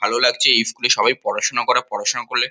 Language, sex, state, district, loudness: Bengali, male, West Bengal, Kolkata, -17 LUFS